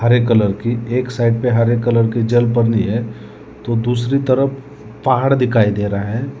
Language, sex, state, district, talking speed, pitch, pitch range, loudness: Hindi, male, Telangana, Hyderabad, 180 wpm, 120 Hz, 115-125 Hz, -16 LUFS